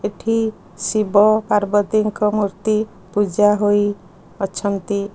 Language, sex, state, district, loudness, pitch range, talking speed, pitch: Odia, female, Odisha, Khordha, -18 LUFS, 200-215 Hz, 80 wpm, 205 Hz